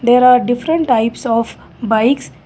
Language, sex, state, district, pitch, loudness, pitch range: English, female, Karnataka, Bangalore, 245 Hz, -14 LUFS, 230-250 Hz